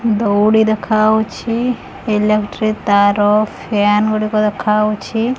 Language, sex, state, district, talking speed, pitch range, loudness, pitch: Odia, female, Odisha, Khordha, 80 wpm, 210-220 Hz, -15 LUFS, 215 Hz